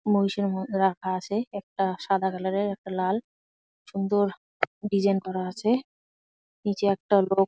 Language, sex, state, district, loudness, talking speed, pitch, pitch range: Bengali, female, West Bengal, Jalpaiguri, -27 LUFS, 135 wpm, 195 Hz, 190-205 Hz